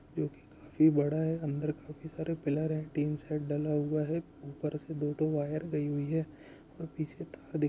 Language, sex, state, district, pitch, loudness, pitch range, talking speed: Hindi, male, Bihar, Saharsa, 150 Hz, -33 LUFS, 150-155 Hz, 210 wpm